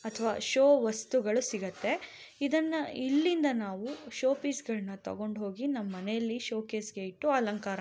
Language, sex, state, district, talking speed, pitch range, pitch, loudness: Kannada, female, Karnataka, Raichur, 145 wpm, 210-280 Hz, 230 Hz, -32 LUFS